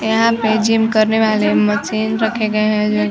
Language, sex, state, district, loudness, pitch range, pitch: Hindi, female, Chhattisgarh, Sarguja, -15 LUFS, 215-220 Hz, 215 Hz